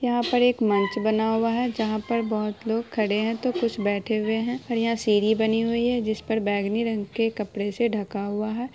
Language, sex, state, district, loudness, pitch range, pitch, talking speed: Hindi, female, Bihar, Araria, -25 LUFS, 210-230 Hz, 220 Hz, 220 wpm